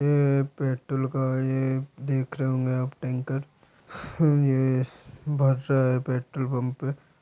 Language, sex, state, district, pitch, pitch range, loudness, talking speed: Hindi, male, Chhattisgarh, Bastar, 135 Hz, 130-140 Hz, -26 LUFS, 135 wpm